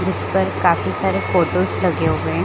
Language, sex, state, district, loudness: Hindi, female, Chhattisgarh, Bilaspur, -18 LUFS